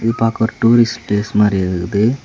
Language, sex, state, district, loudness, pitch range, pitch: Tamil, male, Tamil Nadu, Kanyakumari, -15 LUFS, 105-115 Hz, 110 Hz